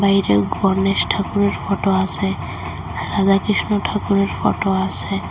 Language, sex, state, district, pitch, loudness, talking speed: Bengali, female, Assam, Hailakandi, 190 Hz, -18 LUFS, 125 wpm